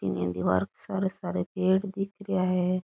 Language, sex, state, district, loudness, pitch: Rajasthani, female, Rajasthan, Nagaur, -28 LUFS, 185 Hz